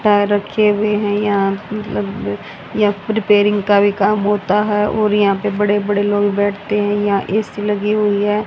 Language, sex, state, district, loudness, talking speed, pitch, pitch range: Hindi, female, Haryana, Rohtak, -16 LUFS, 185 wpm, 205 Hz, 205-210 Hz